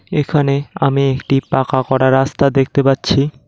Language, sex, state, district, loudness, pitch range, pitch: Bengali, male, West Bengal, Cooch Behar, -15 LUFS, 135-140 Hz, 135 Hz